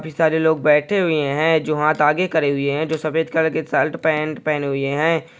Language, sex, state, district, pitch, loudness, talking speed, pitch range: Hindi, male, Andhra Pradesh, Visakhapatnam, 155 Hz, -19 LUFS, 220 wpm, 150-160 Hz